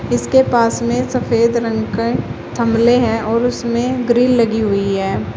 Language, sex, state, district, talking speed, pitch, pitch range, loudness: Hindi, female, Uttar Pradesh, Shamli, 155 wpm, 230 Hz, 220-240 Hz, -16 LUFS